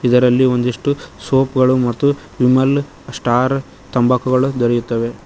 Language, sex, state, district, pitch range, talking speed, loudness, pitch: Kannada, male, Karnataka, Koppal, 120-135 Hz, 105 wpm, -16 LUFS, 125 Hz